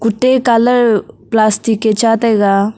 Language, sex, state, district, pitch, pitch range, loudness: Wancho, female, Arunachal Pradesh, Longding, 225 Hz, 215-235 Hz, -12 LUFS